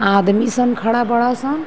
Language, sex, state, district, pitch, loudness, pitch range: Bhojpuri, female, Uttar Pradesh, Ghazipur, 240 Hz, -16 LUFS, 225-245 Hz